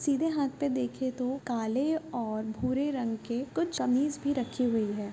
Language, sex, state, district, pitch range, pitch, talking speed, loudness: Hindi, female, Bihar, Madhepura, 235-285 Hz, 255 Hz, 185 wpm, -31 LUFS